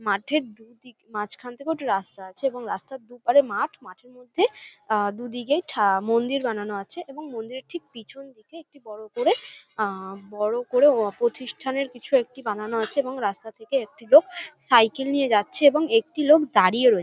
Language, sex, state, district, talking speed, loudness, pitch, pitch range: Bengali, female, West Bengal, North 24 Parganas, 170 wpm, -23 LUFS, 245 Hz, 215-275 Hz